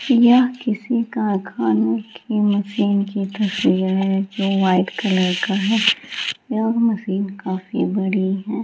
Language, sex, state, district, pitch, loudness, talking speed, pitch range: Hindi, female, Bihar, Gaya, 200 Hz, -19 LUFS, 140 wpm, 190-225 Hz